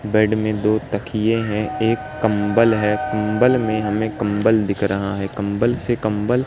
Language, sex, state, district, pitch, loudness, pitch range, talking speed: Hindi, male, Madhya Pradesh, Katni, 110 Hz, -19 LUFS, 105-115 Hz, 175 wpm